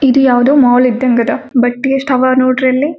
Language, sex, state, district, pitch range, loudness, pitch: Kannada, female, Karnataka, Gulbarga, 250-270 Hz, -11 LUFS, 255 Hz